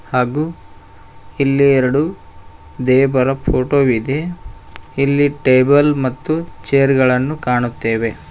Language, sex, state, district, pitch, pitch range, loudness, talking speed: Kannada, male, Karnataka, Koppal, 130 Hz, 110-140 Hz, -15 LUFS, 85 wpm